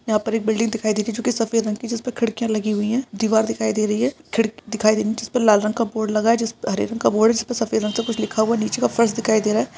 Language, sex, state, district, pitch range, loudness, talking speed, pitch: Hindi, male, Bihar, Gaya, 215-230 Hz, -21 LUFS, 330 wpm, 225 Hz